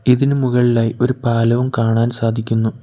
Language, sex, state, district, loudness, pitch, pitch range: Malayalam, male, Kerala, Kollam, -16 LUFS, 120 Hz, 115-125 Hz